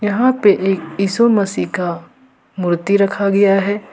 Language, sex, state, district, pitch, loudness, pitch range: Hindi, female, Jharkhand, Ranchi, 200 Hz, -16 LUFS, 190-205 Hz